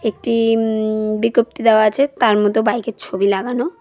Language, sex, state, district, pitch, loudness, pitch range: Bengali, female, West Bengal, Cooch Behar, 220 Hz, -17 LUFS, 215-235 Hz